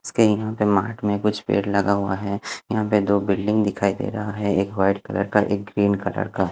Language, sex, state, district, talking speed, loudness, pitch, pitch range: Hindi, male, Punjab, Fazilka, 240 wpm, -22 LUFS, 100 Hz, 100-105 Hz